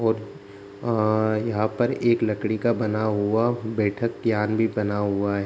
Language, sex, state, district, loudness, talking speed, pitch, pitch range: Hindi, male, Bihar, Kishanganj, -24 LUFS, 165 wpm, 110 Hz, 105-115 Hz